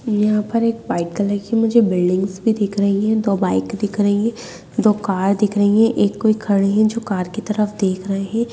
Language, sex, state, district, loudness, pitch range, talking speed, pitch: Hindi, female, Bihar, Purnia, -18 LUFS, 195-220 Hz, 230 wpm, 205 Hz